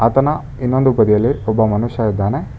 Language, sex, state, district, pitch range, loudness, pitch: Kannada, male, Karnataka, Bangalore, 110-130 Hz, -16 LUFS, 115 Hz